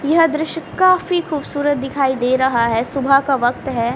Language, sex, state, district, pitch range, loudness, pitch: Hindi, female, Haryana, Rohtak, 255-315 Hz, -17 LUFS, 275 Hz